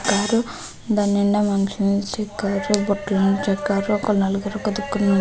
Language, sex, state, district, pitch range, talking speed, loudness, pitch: Telugu, female, Andhra Pradesh, Guntur, 195-210 Hz, 105 wpm, -21 LUFS, 200 Hz